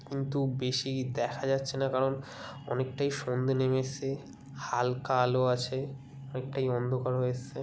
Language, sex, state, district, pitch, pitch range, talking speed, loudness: Bengali, male, West Bengal, Kolkata, 130 Hz, 125-135 Hz, 135 wpm, -31 LUFS